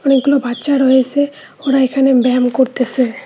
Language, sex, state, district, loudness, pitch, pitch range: Bengali, female, West Bengal, Cooch Behar, -14 LUFS, 265 Hz, 250-275 Hz